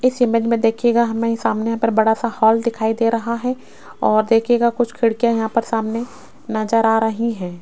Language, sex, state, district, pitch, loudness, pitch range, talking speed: Hindi, female, Rajasthan, Jaipur, 230 Hz, -18 LUFS, 225-235 Hz, 195 wpm